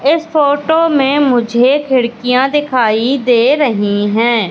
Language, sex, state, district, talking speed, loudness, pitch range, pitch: Hindi, female, Madhya Pradesh, Katni, 120 wpm, -12 LUFS, 235-290 Hz, 255 Hz